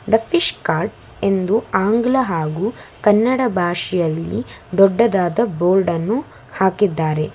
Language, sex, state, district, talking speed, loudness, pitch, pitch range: Kannada, female, Karnataka, Bangalore, 90 wpm, -18 LUFS, 195 Hz, 175-230 Hz